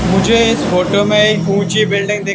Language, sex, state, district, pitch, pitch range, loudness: Hindi, male, Haryana, Charkhi Dadri, 200 Hz, 195-210 Hz, -13 LUFS